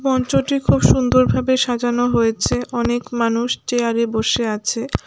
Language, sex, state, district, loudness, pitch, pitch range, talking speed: Bengali, female, West Bengal, Alipurduar, -18 LUFS, 235 Hz, 210-245 Hz, 130 wpm